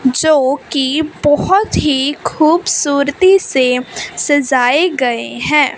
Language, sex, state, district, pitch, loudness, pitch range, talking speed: Hindi, female, Punjab, Fazilka, 290 Hz, -13 LUFS, 260-315 Hz, 85 wpm